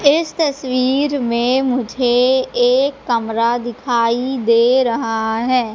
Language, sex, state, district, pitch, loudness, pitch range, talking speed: Hindi, female, Madhya Pradesh, Katni, 250 Hz, -16 LUFS, 235-260 Hz, 105 wpm